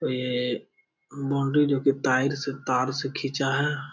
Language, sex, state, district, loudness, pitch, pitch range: Hindi, male, Bihar, Jamui, -26 LUFS, 135 Hz, 130-140 Hz